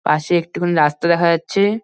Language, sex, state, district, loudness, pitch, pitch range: Bengali, male, West Bengal, Dakshin Dinajpur, -17 LUFS, 170 Hz, 165-175 Hz